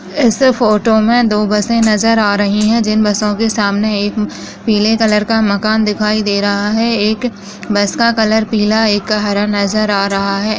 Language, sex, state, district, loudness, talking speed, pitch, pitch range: Hindi, female, Goa, North and South Goa, -13 LUFS, 190 wpm, 215 Hz, 205-220 Hz